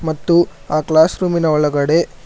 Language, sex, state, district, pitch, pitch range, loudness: Kannada, male, Karnataka, Bangalore, 160 Hz, 155-170 Hz, -15 LUFS